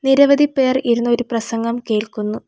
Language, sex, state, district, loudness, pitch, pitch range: Malayalam, female, Kerala, Kollam, -17 LUFS, 240 Hz, 230-265 Hz